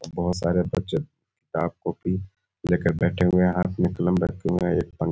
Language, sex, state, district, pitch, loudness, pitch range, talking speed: Hindi, male, Bihar, Muzaffarpur, 90 Hz, -25 LUFS, 85-90 Hz, 210 wpm